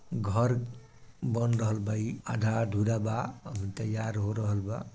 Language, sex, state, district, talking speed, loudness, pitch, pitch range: Bhojpuri, male, Bihar, Gopalganj, 160 wpm, -31 LUFS, 110 Hz, 105-115 Hz